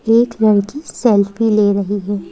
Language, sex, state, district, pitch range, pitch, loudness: Hindi, female, Madhya Pradesh, Bhopal, 200-230 Hz, 210 Hz, -15 LUFS